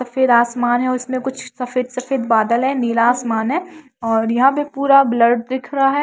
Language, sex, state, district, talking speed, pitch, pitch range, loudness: Hindi, female, Maharashtra, Washim, 210 wpm, 255 Hz, 235-270 Hz, -17 LUFS